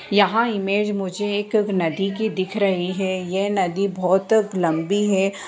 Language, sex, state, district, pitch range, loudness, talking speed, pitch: Hindi, female, Bihar, Sitamarhi, 185-205 Hz, -21 LUFS, 155 wpm, 195 Hz